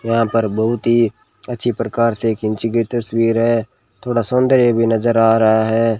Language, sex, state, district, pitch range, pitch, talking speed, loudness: Hindi, male, Rajasthan, Bikaner, 115-120 Hz, 115 Hz, 190 wpm, -16 LUFS